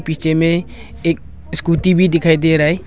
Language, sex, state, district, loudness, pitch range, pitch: Hindi, male, Arunachal Pradesh, Longding, -15 LUFS, 160-170 Hz, 165 Hz